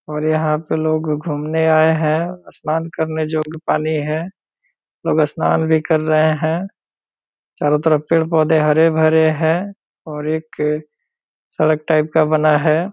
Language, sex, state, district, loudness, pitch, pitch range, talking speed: Hindi, male, Bihar, Purnia, -17 LUFS, 155 Hz, 155-160 Hz, 165 wpm